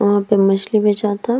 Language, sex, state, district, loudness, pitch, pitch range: Bhojpuri, female, Bihar, East Champaran, -16 LUFS, 205 Hz, 200-210 Hz